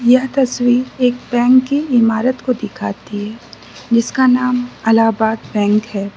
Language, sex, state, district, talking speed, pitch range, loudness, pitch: Hindi, female, Mizoram, Aizawl, 135 wpm, 220-250 Hz, -15 LUFS, 240 Hz